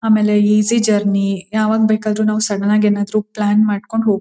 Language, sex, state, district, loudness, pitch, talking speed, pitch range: Kannada, female, Karnataka, Mysore, -15 LUFS, 210 Hz, 185 wpm, 205-215 Hz